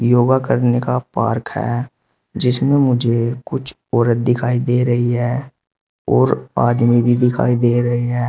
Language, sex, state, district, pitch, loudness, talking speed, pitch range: Hindi, male, Uttar Pradesh, Shamli, 120 Hz, -17 LUFS, 145 wpm, 120-125 Hz